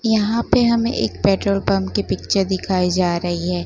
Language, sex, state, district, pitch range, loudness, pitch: Hindi, female, Gujarat, Gandhinagar, 180-220 Hz, -19 LUFS, 195 Hz